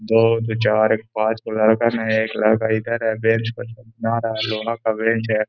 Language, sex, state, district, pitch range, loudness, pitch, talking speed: Hindi, male, Bihar, Gaya, 110-115 Hz, -20 LUFS, 110 Hz, 230 wpm